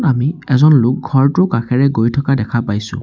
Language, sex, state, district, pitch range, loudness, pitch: Assamese, male, Assam, Sonitpur, 120-140 Hz, -14 LUFS, 130 Hz